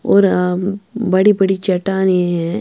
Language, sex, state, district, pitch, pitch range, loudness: Hindi, female, Bihar, Patna, 190 Hz, 180-200 Hz, -15 LUFS